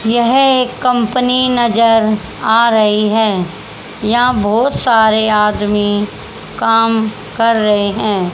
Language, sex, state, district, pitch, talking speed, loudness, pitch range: Hindi, female, Haryana, Charkhi Dadri, 220 Hz, 110 wpm, -13 LUFS, 210-235 Hz